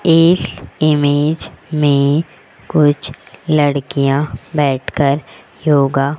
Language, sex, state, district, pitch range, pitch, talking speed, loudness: Hindi, female, Rajasthan, Jaipur, 140-155 Hz, 145 Hz, 75 wpm, -15 LUFS